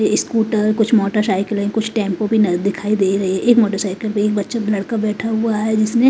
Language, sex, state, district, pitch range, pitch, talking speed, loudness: Hindi, female, Himachal Pradesh, Shimla, 200-220 Hz, 215 Hz, 185 wpm, -17 LUFS